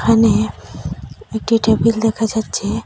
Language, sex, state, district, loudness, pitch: Bengali, female, Assam, Hailakandi, -17 LUFS, 220 Hz